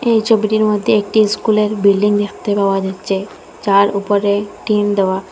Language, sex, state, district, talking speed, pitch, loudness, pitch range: Bengali, female, Assam, Hailakandi, 145 wpm, 205 Hz, -15 LUFS, 200-215 Hz